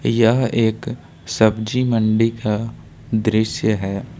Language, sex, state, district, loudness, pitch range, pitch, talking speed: Hindi, male, Jharkhand, Ranchi, -19 LUFS, 110-115 Hz, 110 Hz, 100 wpm